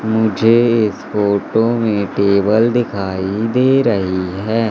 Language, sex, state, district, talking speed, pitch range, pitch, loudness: Hindi, male, Madhya Pradesh, Katni, 115 wpm, 100-115 Hz, 110 Hz, -15 LUFS